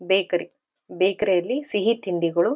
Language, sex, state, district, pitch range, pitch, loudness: Kannada, female, Karnataka, Dharwad, 175-210 Hz, 190 Hz, -23 LUFS